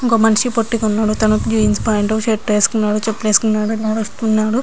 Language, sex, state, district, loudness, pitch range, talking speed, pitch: Telugu, female, Andhra Pradesh, Srikakulam, -16 LUFS, 215-225 Hz, 155 wpm, 215 Hz